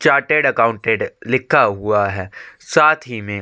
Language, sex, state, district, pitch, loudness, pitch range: Hindi, male, Chhattisgarh, Korba, 115 Hz, -16 LUFS, 100-155 Hz